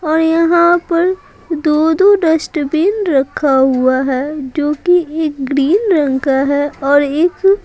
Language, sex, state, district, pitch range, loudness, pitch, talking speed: Hindi, female, Bihar, Patna, 280-345 Hz, -13 LUFS, 310 Hz, 125 wpm